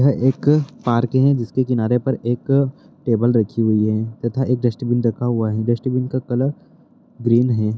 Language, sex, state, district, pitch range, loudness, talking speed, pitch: Hindi, male, Bihar, Araria, 115-130 Hz, -19 LUFS, 175 wpm, 120 Hz